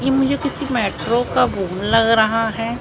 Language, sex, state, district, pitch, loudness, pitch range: Hindi, male, Maharashtra, Mumbai Suburban, 225 Hz, -18 LUFS, 220-270 Hz